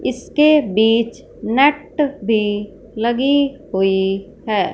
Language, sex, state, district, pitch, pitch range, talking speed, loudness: Hindi, female, Punjab, Fazilka, 230 Hz, 205-280 Hz, 90 wpm, -17 LUFS